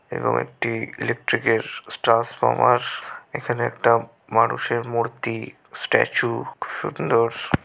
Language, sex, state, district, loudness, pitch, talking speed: Bengali, male, West Bengal, Malda, -22 LUFS, 115 Hz, 85 wpm